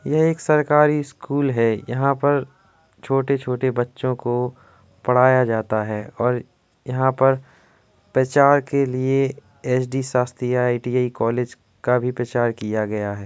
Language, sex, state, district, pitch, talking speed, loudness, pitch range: Hindi, male, Uttar Pradesh, Jalaun, 125 Hz, 130 wpm, -21 LUFS, 120-135 Hz